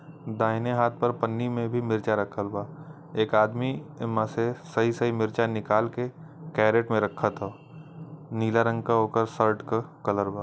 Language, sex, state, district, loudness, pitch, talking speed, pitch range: Bhojpuri, male, Uttar Pradesh, Varanasi, -27 LUFS, 115 Hz, 175 wpm, 110-125 Hz